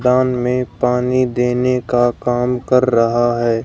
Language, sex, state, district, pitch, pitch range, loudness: Hindi, male, Haryana, Jhajjar, 125 Hz, 120-125 Hz, -16 LUFS